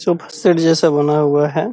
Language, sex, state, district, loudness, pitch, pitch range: Hindi, male, Bihar, Purnia, -15 LUFS, 160 Hz, 150-175 Hz